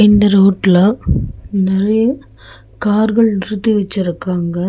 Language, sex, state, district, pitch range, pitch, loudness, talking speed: Tamil, female, Tamil Nadu, Chennai, 180-210 Hz, 195 Hz, -14 LUFS, 75 wpm